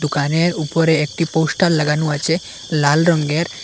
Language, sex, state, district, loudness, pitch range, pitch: Bengali, male, Assam, Hailakandi, -17 LUFS, 150-165 Hz, 160 Hz